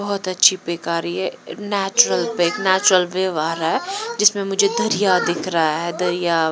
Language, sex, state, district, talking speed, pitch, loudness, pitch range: Hindi, female, Punjab, Pathankot, 185 wpm, 185 Hz, -18 LUFS, 170-200 Hz